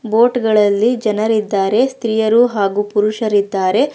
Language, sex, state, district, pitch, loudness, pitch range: Kannada, female, Karnataka, Bangalore, 220 Hz, -15 LUFS, 205-235 Hz